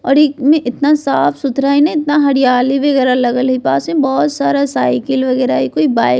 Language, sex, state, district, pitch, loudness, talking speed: Bajjika, female, Bihar, Vaishali, 255 Hz, -13 LUFS, 210 wpm